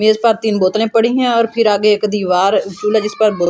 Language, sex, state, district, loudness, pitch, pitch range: Hindi, female, Delhi, New Delhi, -14 LUFS, 215 Hz, 205-225 Hz